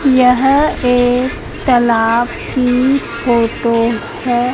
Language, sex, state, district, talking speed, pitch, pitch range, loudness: Hindi, female, Madhya Pradesh, Katni, 80 wpm, 245 Hz, 235-255 Hz, -14 LUFS